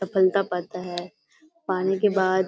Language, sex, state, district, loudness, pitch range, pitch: Hindi, female, Bihar, Kishanganj, -24 LUFS, 185-200 Hz, 190 Hz